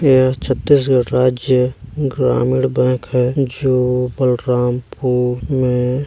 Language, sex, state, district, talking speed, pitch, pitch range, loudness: Hindi, male, Chhattisgarh, Balrampur, 100 wpm, 125 Hz, 125-130 Hz, -16 LUFS